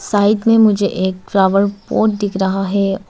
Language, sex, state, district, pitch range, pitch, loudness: Hindi, female, Arunachal Pradesh, Papum Pare, 195-205 Hz, 200 Hz, -15 LUFS